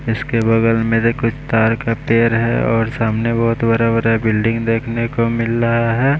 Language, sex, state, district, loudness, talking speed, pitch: Hindi, male, Bihar, West Champaran, -16 LUFS, 195 wpm, 115 Hz